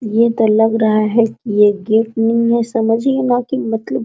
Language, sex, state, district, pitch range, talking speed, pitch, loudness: Hindi, female, Bihar, Araria, 220-235 Hz, 220 wpm, 225 Hz, -15 LUFS